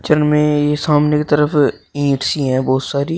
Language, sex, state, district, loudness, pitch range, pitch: Hindi, male, Uttar Pradesh, Shamli, -15 LUFS, 140-150 Hz, 150 Hz